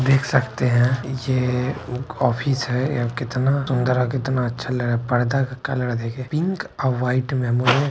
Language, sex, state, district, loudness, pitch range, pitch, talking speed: Maithili, male, Bihar, Kishanganj, -22 LUFS, 125-135 Hz, 125 Hz, 190 wpm